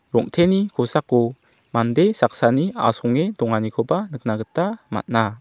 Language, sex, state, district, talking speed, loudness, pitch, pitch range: Garo, male, Meghalaya, South Garo Hills, 100 wpm, -21 LUFS, 125 Hz, 115-170 Hz